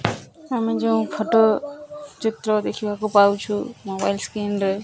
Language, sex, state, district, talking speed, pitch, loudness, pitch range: Odia, male, Odisha, Nuapada, 125 wpm, 215 Hz, -22 LUFS, 205-230 Hz